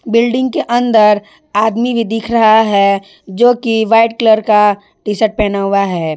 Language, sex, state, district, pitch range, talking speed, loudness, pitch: Hindi, female, Jharkhand, Ranchi, 205-230 Hz, 165 wpm, -12 LUFS, 220 Hz